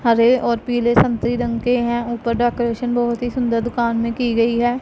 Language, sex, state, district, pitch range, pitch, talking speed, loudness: Hindi, female, Punjab, Pathankot, 235-240 Hz, 240 Hz, 210 wpm, -19 LUFS